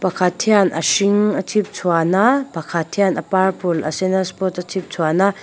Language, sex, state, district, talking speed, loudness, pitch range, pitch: Mizo, female, Mizoram, Aizawl, 200 wpm, -18 LUFS, 170-195 Hz, 190 Hz